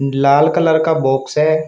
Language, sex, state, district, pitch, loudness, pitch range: Hindi, male, Uttar Pradesh, Shamli, 150 Hz, -14 LUFS, 135-160 Hz